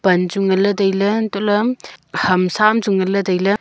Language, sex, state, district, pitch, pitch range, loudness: Wancho, female, Arunachal Pradesh, Longding, 200 Hz, 190-210 Hz, -17 LUFS